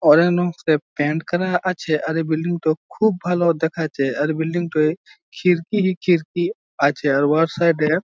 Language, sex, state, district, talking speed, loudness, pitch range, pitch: Bengali, male, West Bengal, Jhargram, 180 wpm, -20 LUFS, 155-175 Hz, 165 Hz